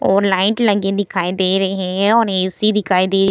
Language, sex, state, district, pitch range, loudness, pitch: Hindi, female, Bihar, Vaishali, 190-205 Hz, -16 LUFS, 195 Hz